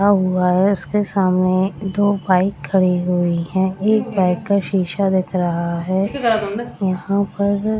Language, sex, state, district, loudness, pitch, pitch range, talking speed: Hindi, female, Bihar, Madhepura, -18 LUFS, 190 Hz, 185-200 Hz, 155 wpm